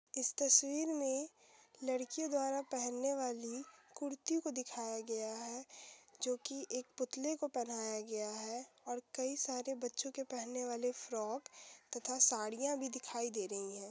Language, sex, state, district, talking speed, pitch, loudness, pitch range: Hindi, female, Uttar Pradesh, Hamirpur, 150 wpm, 255 Hz, -39 LUFS, 235-275 Hz